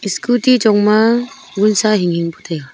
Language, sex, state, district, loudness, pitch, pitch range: Wancho, female, Arunachal Pradesh, Longding, -14 LUFS, 210 Hz, 180-235 Hz